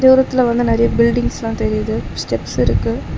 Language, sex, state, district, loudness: Tamil, female, Tamil Nadu, Chennai, -16 LUFS